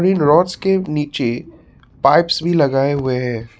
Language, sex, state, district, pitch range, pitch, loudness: Hindi, male, Assam, Sonitpur, 125-170 Hz, 145 Hz, -16 LUFS